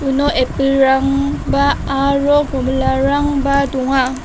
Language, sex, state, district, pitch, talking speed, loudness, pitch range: Garo, female, Meghalaya, North Garo Hills, 275 Hz, 70 wpm, -15 LUFS, 265-280 Hz